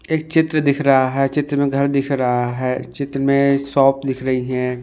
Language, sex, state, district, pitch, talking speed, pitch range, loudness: Hindi, male, Madhya Pradesh, Dhar, 135 Hz, 210 wpm, 130-140 Hz, -18 LUFS